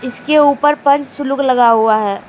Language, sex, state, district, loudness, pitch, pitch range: Hindi, female, Jharkhand, Deoghar, -13 LUFS, 275 Hz, 235-285 Hz